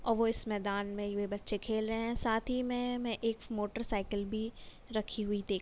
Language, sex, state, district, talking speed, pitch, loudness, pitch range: Hindi, female, Uttar Pradesh, Jyotiba Phule Nagar, 225 wpm, 220 Hz, -35 LUFS, 205-230 Hz